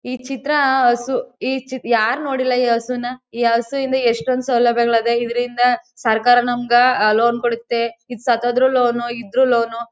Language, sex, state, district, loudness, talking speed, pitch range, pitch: Kannada, female, Karnataka, Chamarajanagar, -18 LUFS, 145 wpm, 235-255 Hz, 245 Hz